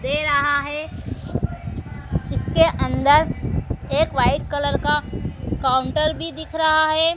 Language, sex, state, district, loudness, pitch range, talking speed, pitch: Hindi, female, Madhya Pradesh, Dhar, -20 LUFS, 285-315 Hz, 115 wpm, 295 Hz